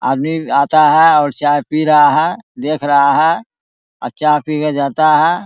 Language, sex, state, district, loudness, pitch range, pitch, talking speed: Hindi, male, Bihar, Araria, -13 LUFS, 145-155 Hz, 150 Hz, 185 wpm